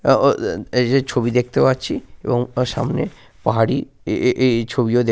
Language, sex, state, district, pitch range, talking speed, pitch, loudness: Bengali, male, Jharkhand, Sahebganj, 120-130 Hz, 175 wpm, 125 Hz, -19 LUFS